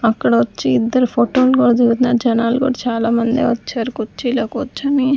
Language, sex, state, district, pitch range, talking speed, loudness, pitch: Telugu, female, Andhra Pradesh, Sri Satya Sai, 230-255 Hz, 140 wpm, -16 LUFS, 240 Hz